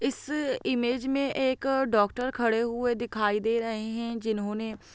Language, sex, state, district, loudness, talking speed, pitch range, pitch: Hindi, female, Bihar, Begusarai, -28 LUFS, 155 wpm, 220-260 Hz, 235 Hz